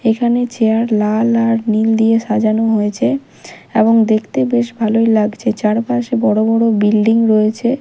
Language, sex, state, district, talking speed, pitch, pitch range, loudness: Bengali, female, Odisha, Malkangiri, 140 wpm, 225 Hz, 215-235 Hz, -14 LUFS